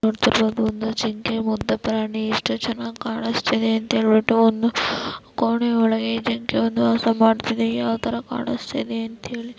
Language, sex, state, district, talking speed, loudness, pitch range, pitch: Kannada, female, Karnataka, Gulbarga, 130 wpm, -21 LUFS, 220-230 Hz, 225 Hz